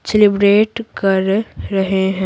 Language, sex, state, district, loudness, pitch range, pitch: Hindi, female, Bihar, Patna, -15 LUFS, 190-210 Hz, 200 Hz